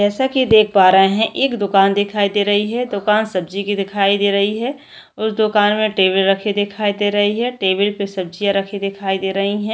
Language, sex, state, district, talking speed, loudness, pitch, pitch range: Hindi, female, Chhattisgarh, Kabirdham, 220 wpm, -16 LUFS, 205 Hz, 195-215 Hz